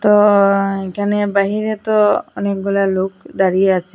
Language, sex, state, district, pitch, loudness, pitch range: Bengali, female, Assam, Hailakandi, 200 Hz, -16 LUFS, 195-205 Hz